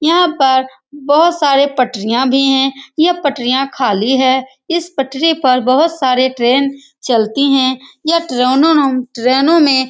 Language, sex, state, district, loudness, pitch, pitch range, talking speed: Hindi, female, Bihar, Saran, -13 LUFS, 270 Hz, 255-295 Hz, 145 wpm